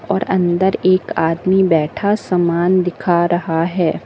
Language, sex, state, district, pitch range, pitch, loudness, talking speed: Hindi, female, Uttar Pradesh, Lucknow, 170-190 Hz, 180 Hz, -16 LUFS, 135 wpm